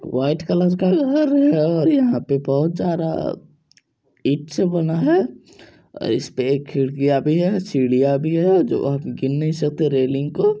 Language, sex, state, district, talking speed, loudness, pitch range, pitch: Maithili, male, Bihar, Supaul, 165 wpm, -19 LUFS, 140-180 Hz, 155 Hz